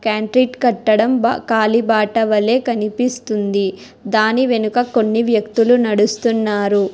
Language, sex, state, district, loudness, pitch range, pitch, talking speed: Telugu, female, Telangana, Hyderabad, -16 LUFS, 215-240 Hz, 225 Hz, 85 wpm